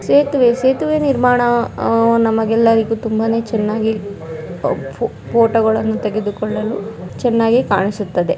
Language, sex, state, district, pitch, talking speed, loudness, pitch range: Kannada, male, Karnataka, Mysore, 225 Hz, 70 wpm, -16 LUFS, 215-240 Hz